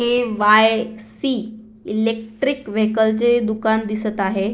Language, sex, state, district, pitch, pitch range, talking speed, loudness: Marathi, female, Maharashtra, Aurangabad, 220 Hz, 215-230 Hz, 120 wpm, -19 LUFS